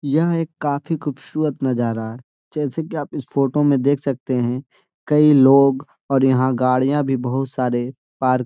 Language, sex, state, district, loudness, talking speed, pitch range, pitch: Hindi, male, Bihar, Gaya, -19 LUFS, 175 wpm, 130-145 Hz, 135 Hz